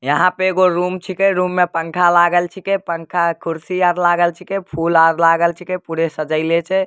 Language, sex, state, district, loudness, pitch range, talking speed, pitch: Maithili, male, Bihar, Samastipur, -16 LUFS, 165-185 Hz, 190 wpm, 175 Hz